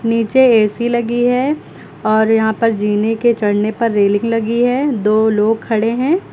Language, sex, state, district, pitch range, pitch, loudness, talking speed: Hindi, female, Uttar Pradesh, Lucknow, 215-240 Hz, 225 Hz, -15 LUFS, 170 wpm